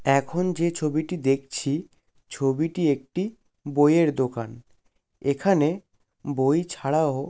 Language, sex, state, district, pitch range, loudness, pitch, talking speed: Bengali, male, West Bengal, Jalpaiguri, 135-170 Hz, -24 LUFS, 145 Hz, 105 wpm